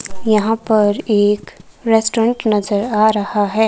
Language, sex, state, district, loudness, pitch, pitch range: Hindi, female, Himachal Pradesh, Shimla, -16 LUFS, 215 Hz, 205-225 Hz